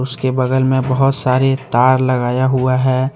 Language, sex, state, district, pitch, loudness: Hindi, male, Jharkhand, Deoghar, 130 Hz, -15 LUFS